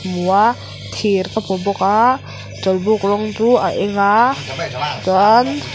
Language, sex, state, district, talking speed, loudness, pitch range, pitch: Mizo, female, Mizoram, Aizawl, 145 wpm, -16 LUFS, 185-220 Hz, 200 Hz